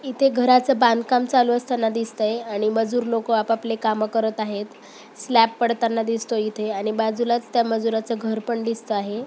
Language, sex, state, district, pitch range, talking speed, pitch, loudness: Marathi, female, Maharashtra, Pune, 220-235 Hz, 160 wpm, 225 Hz, -22 LUFS